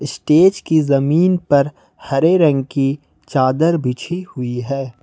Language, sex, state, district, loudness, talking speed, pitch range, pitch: Hindi, male, Jharkhand, Ranchi, -16 LUFS, 130 wpm, 135-165 Hz, 145 Hz